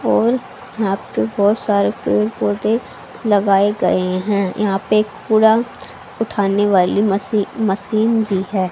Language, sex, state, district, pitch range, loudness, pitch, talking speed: Hindi, female, Haryana, Charkhi Dadri, 190-220 Hz, -17 LUFS, 205 Hz, 130 wpm